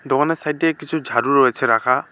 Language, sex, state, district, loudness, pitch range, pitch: Bengali, male, West Bengal, Alipurduar, -18 LUFS, 135-160 Hz, 150 Hz